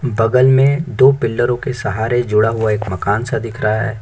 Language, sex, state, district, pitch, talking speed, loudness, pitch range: Hindi, male, Chhattisgarh, Korba, 115 Hz, 210 wpm, -15 LUFS, 110-130 Hz